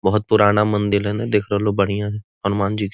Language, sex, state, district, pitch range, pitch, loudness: Magahi, male, Bihar, Gaya, 100-105 Hz, 105 Hz, -19 LUFS